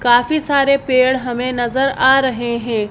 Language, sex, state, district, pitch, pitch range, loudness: Hindi, female, Madhya Pradesh, Bhopal, 255 Hz, 240-270 Hz, -15 LUFS